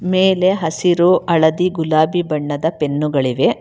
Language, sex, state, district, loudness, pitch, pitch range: Kannada, female, Karnataka, Bangalore, -16 LUFS, 160 Hz, 150-180 Hz